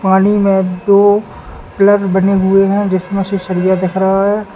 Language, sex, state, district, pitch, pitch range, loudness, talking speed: Hindi, male, Uttar Pradesh, Lalitpur, 195 Hz, 190-200 Hz, -12 LUFS, 170 wpm